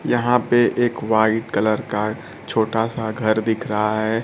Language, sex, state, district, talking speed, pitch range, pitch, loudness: Hindi, male, Bihar, Kaimur, 170 wpm, 110-115 Hz, 110 Hz, -20 LUFS